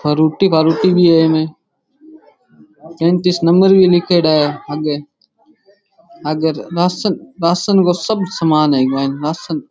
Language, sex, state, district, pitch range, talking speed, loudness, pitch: Rajasthani, male, Rajasthan, Churu, 155-185 Hz, 135 wpm, -14 LUFS, 165 Hz